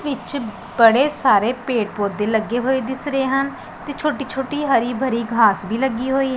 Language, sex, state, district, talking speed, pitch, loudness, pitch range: Punjabi, female, Punjab, Pathankot, 180 wpm, 260 Hz, -19 LUFS, 230-270 Hz